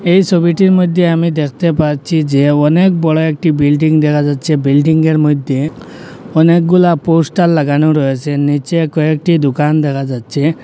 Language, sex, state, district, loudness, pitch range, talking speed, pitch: Bengali, male, Assam, Hailakandi, -12 LUFS, 145-170 Hz, 135 wpm, 155 Hz